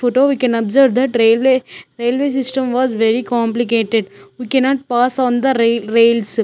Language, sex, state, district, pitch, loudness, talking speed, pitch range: English, female, Chandigarh, Chandigarh, 245 Hz, -15 LUFS, 170 wpm, 230-260 Hz